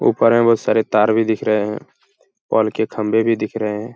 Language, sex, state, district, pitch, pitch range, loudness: Hindi, male, Uttar Pradesh, Hamirpur, 110 Hz, 105-115 Hz, -17 LUFS